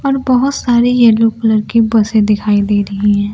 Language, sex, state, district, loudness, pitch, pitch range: Hindi, female, Bihar, Kaimur, -12 LUFS, 225 Hz, 205-240 Hz